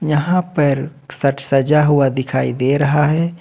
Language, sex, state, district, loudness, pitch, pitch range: Hindi, male, Jharkhand, Ranchi, -16 LUFS, 145 Hz, 140-150 Hz